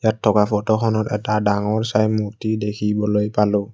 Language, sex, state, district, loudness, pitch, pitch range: Assamese, male, Assam, Kamrup Metropolitan, -20 LUFS, 105 Hz, 105-110 Hz